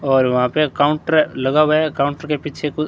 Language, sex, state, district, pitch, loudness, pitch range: Hindi, male, Rajasthan, Bikaner, 150 Hz, -17 LUFS, 140-155 Hz